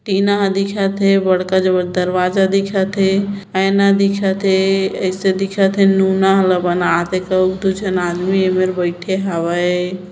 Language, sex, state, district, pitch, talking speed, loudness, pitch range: Hindi, female, Chhattisgarh, Bilaspur, 190 Hz, 150 wpm, -16 LUFS, 185-195 Hz